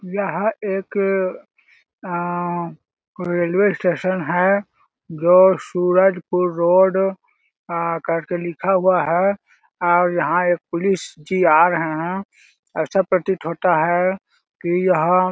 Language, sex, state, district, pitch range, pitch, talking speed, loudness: Hindi, male, Chhattisgarh, Balrampur, 175-190 Hz, 180 Hz, 115 wpm, -19 LUFS